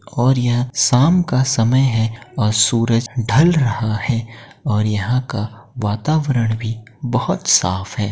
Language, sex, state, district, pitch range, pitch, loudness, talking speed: Hindi, male, Uttar Pradesh, Etah, 110-130 Hz, 120 Hz, -17 LUFS, 140 wpm